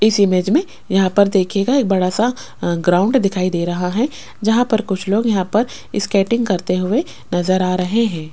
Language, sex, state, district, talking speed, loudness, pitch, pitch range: Hindi, female, Rajasthan, Jaipur, 200 wpm, -17 LUFS, 195 Hz, 185-220 Hz